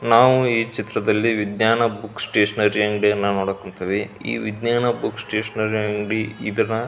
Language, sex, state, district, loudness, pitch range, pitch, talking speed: Kannada, male, Karnataka, Belgaum, -21 LUFS, 105-115 Hz, 110 Hz, 140 wpm